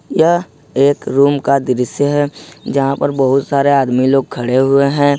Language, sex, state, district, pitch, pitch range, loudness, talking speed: Hindi, male, Jharkhand, Ranchi, 140 Hz, 135-145 Hz, -14 LUFS, 175 wpm